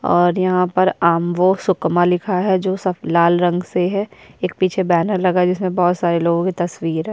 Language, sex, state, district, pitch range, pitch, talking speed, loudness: Hindi, female, Chhattisgarh, Sukma, 175-185 Hz, 180 Hz, 210 wpm, -17 LUFS